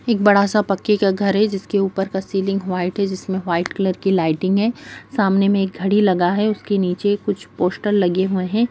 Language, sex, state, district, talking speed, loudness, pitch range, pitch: Hindi, female, Bihar, Jahanabad, 215 wpm, -19 LUFS, 190-205 Hz, 195 Hz